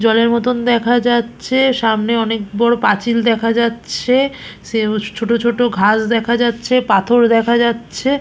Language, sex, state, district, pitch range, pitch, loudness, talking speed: Bengali, female, West Bengal, Purulia, 225-240 Hz, 235 Hz, -15 LUFS, 145 wpm